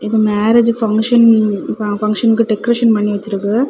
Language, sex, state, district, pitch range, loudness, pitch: Tamil, female, Tamil Nadu, Kanyakumari, 210-230 Hz, -14 LUFS, 220 Hz